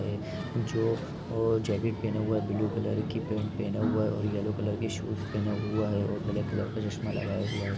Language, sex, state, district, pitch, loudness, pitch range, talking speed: Hindi, male, Chhattisgarh, Rajnandgaon, 105 Hz, -31 LUFS, 105-110 Hz, 215 wpm